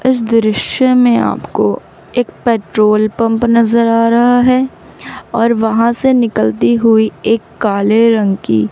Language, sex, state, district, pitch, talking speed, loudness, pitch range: Hindi, female, Chandigarh, Chandigarh, 230 Hz, 140 wpm, -12 LUFS, 215-240 Hz